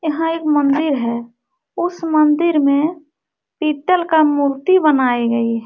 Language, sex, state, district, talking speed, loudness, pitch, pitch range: Hindi, female, Bihar, Supaul, 140 wpm, -16 LUFS, 300 Hz, 275-325 Hz